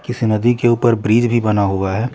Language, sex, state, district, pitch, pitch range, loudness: Hindi, male, Bihar, West Champaran, 115 Hz, 105-120 Hz, -16 LUFS